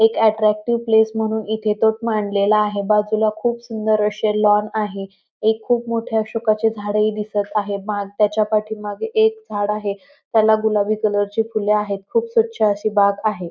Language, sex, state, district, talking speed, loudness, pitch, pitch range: Marathi, female, Maharashtra, Pune, 170 wpm, -19 LUFS, 215 Hz, 210-220 Hz